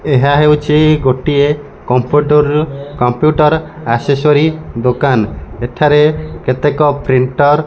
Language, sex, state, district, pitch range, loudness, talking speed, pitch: Odia, male, Odisha, Malkangiri, 130-150 Hz, -12 LUFS, 85 wpm, 145 Hz